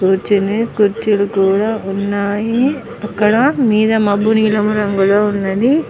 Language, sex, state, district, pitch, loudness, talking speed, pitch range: Telugu, female, Andhra Pradesh, Chittoor, 210 Hz, -15 LUFS, 100 wpm, 200-225 Hz